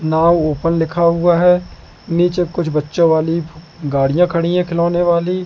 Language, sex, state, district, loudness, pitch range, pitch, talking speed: Hindi, male, Madhya Pradesh, Katni, -15 LUFS, 160-175 Hz, 170 Hz, 155 wpm